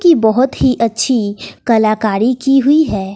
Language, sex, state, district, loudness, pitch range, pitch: Hindi, female, Bihar, West Champaran, -13 LUFS, 215-270 Hz, 235 Hz